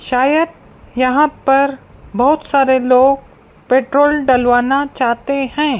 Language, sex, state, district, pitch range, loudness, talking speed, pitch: Hindi, female, Madhya Pradesh, Dhar, 255-285 Hz, -14 LUFS, 105 wpm, 270 Hz